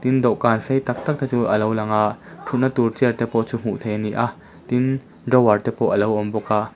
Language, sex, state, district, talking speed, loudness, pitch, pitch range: Mizo, male, Mizoram, Aizawl, 260 wpm, -21 LUFS, 115 Hz, 110-125 Hz